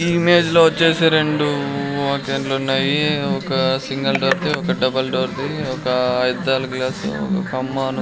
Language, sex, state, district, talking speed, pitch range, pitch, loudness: Telugu, male, Andhra Pradesh, Sri Satya Sai, 150 wpm, 130-160 Hz, 140 Hz, -18 LUFS